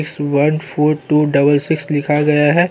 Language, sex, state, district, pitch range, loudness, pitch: Hindi, male, Chhattisgarh, Korba, 145-150 Hz, -15 LUFS, 150 Hz